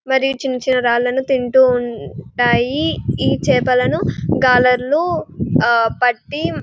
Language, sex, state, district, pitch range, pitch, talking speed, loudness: Telugu, female, Telangana, Karimnagar, 240-265 Hz, 250 Hz, 90 wpm, -16 LUFS